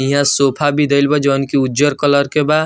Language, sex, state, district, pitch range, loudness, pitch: Bhojpuri, male, Bihar, Muzaffarpur, 140-145 Hz, -14 LUFS, 140 Hz